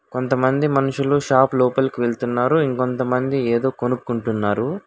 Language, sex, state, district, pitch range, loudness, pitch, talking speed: Telugu, male, Telangana, Hyderabad, 120-135 Hz, -20 LUFS, 130 Hz, 100 wpm